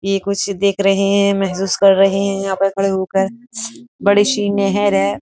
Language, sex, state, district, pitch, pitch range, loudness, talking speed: Hindi, male, Uttar Pradesh, Jyotiba Phule Nagar, 195 Hz, 195-200 Hz, -16 LUFS, 205 wpm